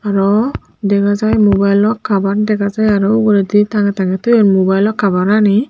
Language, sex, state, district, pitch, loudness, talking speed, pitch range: Chakma, male, Tripura, Unakoti, 205 Hz, -13 LUFS, 160 wpm, 200-215 Hz